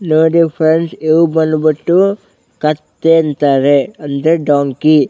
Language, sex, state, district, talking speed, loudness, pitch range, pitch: Kannada, male, Karnataka, Bellary, 105 wpm, -13 LUFS, 145-165 Hz, 155 Hz